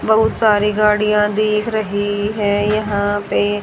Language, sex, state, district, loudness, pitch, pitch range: Hindi, female, Haryana, Charkhi Dadri, -16 LUFS, 210 Hz, 205-215 Hz